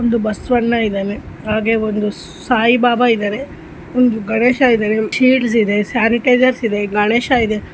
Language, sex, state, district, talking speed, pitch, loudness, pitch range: Kannada, female, Karnataka, Shimoga, 125 wpm, 225 Hz, -15 LUFS, 210-245 Hz